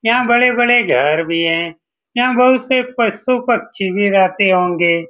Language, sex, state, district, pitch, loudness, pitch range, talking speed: Hindi, male, Bihar, Saran, 220 Hz, -14 LUFS, 175-245 Hz, 140 wpm